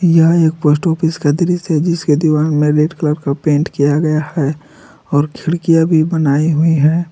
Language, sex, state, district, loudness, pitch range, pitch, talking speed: Hindi, male, Jharkhand, Palamu, -14 LUFS, 150-165 Hz, 155 Hz, 195 wpm